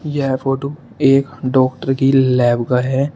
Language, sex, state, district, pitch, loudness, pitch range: Hindi, male, Uttar Pradesh, Shamli, 135 Hz, -16 LUFS, 130-135 Hz